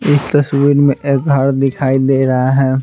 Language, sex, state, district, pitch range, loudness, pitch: Hindi, male, Bihar, Patna, 135-140 Hz, -13 LUFS, 135 Hz